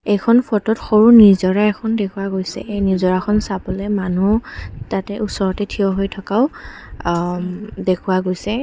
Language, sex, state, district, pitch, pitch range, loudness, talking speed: Assamese, female, Assam, Kamrup Metropolitan, 200 Hz, 190-210 Hz, -17 LUFS, 140 wpm